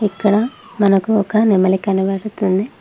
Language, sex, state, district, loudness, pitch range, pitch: Telugu, female, Telangana, Mahabubabad, -16 LUFS, 195-215 Hz, 205 Hz